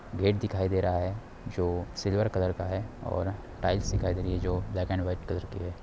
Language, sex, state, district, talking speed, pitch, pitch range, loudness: Hindi, male, Bihar, Darbhanga, 235 wpm, 95 Hz, 90-100 Hz, -31 LUFS